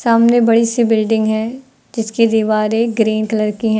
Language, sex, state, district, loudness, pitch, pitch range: Hindi, female, Uttar Pradesh, Lucknow, -15 LUFS, 225 Hz, 220-230 Hz